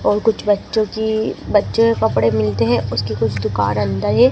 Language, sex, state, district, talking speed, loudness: Hindi, female, Madhya Pradesh, Dhar, 195 wpm, -17 LUFS